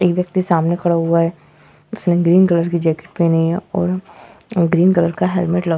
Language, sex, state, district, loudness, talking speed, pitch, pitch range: Hindi, female, Uttar Pradesh, Etah, -16 LUFS, 205 wpm, 170 Hz, 170-180 Hz